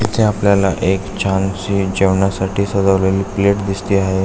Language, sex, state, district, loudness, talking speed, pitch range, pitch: Marathi, male, Maharashtra, Aurangabad, -16 LUFS, 125 wpm, 95-100 Hz, 95 Hz